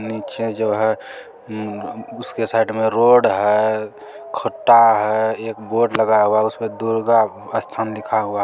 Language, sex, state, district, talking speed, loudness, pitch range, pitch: Maithili, male, Bihar, Supaul, 150 wpm, -18 LUFS, 110-115 Hz, 110 Hz